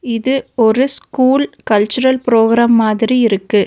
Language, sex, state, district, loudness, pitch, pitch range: Tamil, female, Tamil Nadu, Nilgiris, -13 LUFS, 235 Hz, 225-260 Hz